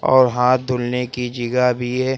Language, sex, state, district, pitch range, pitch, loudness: Hindi, male, Uttar Pradesh, Lucknow, 125-130 Hz, 125 Hz, -19 LUFS